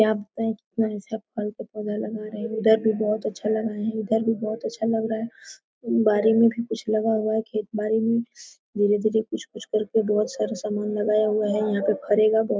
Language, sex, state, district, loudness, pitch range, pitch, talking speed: Hindi, female, Jharkhand, Sahebganj, -24 LUFS, 210-220 Hz, 215 Hz, 220 wpm